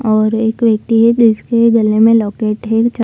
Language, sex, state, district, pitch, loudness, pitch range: Hindi, female, Bihar, Lakhisarai, 225 Hz, -12 LUFS, 220-230 Hz